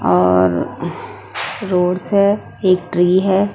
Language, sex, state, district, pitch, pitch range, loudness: Hindi, female, Bihar, West Champaran, 180 Hz, 175-200 Hz, -16 LUFS